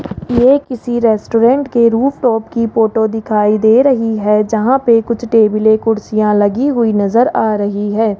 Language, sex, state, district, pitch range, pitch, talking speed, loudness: Hindi, male, Rajasthan, Jaipur, 215-240 Hz, 225 Hz, 160 wpm, -13 LUFS